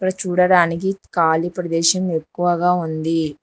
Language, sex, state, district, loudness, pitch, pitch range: Telugu, female, Telangana, Hyderabad, -18 LUFS, 175 Hz, 165-180 Hz